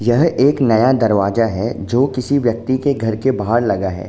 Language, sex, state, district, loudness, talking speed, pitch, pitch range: Hindi, male, Uttar Pradesh, Jalaun, -16 LUFS, 205 wpm, 120 Hz, 110-130 Hz